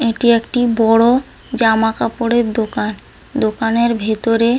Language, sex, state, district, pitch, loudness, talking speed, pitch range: Bengali, female, West Bengal, Paschim Medinipur, 230 Hz, -15 LUFS, 105 wpm, 225-235 Hz